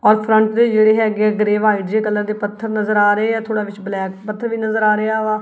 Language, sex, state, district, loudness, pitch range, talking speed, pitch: Punjabi, female, Punjab, Kapurthala, -17 LUFS, 210-220 Hz, 265 wpm, 215 Hz